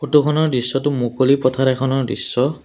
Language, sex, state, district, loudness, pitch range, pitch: Assamese, male, Assam, Kamrup Metropolitan, -17 LUFS, 130-145 Hz, 135 Hz